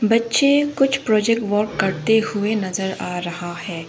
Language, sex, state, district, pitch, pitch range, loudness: Hindi, female, Arunachal Pradesh, Longding, 215 Hz, 190-230 Hz, -20 LUFS